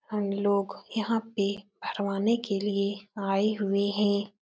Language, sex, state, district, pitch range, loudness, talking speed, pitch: Hindi, female, Uttar Pradesh, Etah, 200-210 Hz, -29 LUFS, 135 wpm, 200 Hz